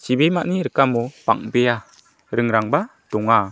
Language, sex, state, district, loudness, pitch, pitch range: Garo, male, Meghalaya, South Garo Hills, -20 LUFS, 125 Hz, 115-150 Hz